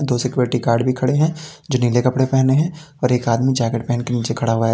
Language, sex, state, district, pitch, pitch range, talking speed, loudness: Hindi, male, Uttar Pradesh, Lalitpur, 125 Hz, 120-135 Hz, 255 wpm, -18 LUFS